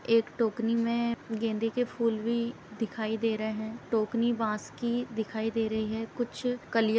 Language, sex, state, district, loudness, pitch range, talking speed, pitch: Hindi, female, Uttar Pradesh, Etah, -31 LUFS, 220-235 Hz, 180 wpm, 225 Hz